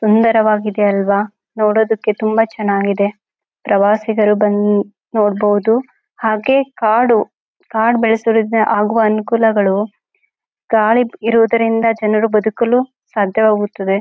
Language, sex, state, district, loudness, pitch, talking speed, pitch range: Kannada, female, Karnataka, Shimoga, -15 LUFS, 220 Hz, 80 wpm, 210-230 Hz